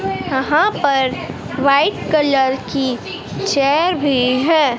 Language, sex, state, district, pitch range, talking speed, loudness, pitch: Hindi, female, Madhya Pradesh, Dhar, 265-295 Hz, 100 wpm, -16 LUFS, 275 Hz